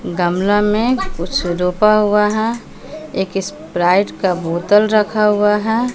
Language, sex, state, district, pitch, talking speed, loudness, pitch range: Hindi, female, Bihar, West Champaran, 210 Hz, 130 wpm, -16 LUFS, 185-220 Hz